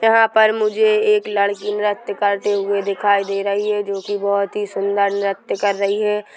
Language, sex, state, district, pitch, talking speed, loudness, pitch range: Hindi, female, Chhattisgarh, Korba, 205 Hz, 200 wpm, -18 LUFS, 200-210 Hz